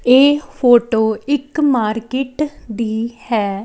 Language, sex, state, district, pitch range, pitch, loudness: Punjabi, female, Chandigarh, Chandigarh, 220-280 Hz, 240 Hz, -16 LUFS